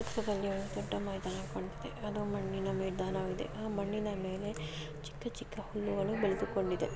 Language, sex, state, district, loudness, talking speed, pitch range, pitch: Kannada, female, Karnataka, Mysore, -37 LUFS, 120 wpm, 190-210 Hz, 195 Hz